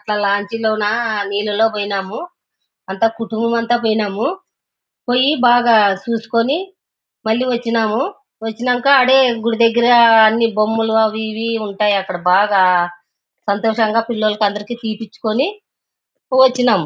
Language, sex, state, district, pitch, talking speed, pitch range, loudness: Telugu, female, Andhra Pradesh, Anantapur, 225 Hz, 105 wpm, 210-240 Hz, -16 LUFS